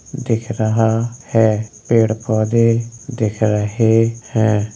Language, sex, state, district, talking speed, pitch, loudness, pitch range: Hindi, male, Uttar Pradesh, Jalaun, 125 wpm, 115 Hz, -17 LUFS, 110-115 Hz